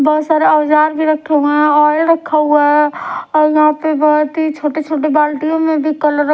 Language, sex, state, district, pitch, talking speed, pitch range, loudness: Hindi, female, Odisha, Sambalpur, 305 Hz, 215 wpm, 300-310 Hz, -13 LUFS